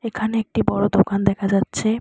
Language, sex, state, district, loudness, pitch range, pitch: Bengali, female, West Bengal, Alipurduar, -20 LUFS, 195-220 Hz, 205 Hz